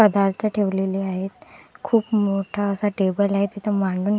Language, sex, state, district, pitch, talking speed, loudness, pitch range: Marathi, female, Maharashtra, Gondia, 200 Hz, 145 wpm, -22 LUFS, 195-210 Hz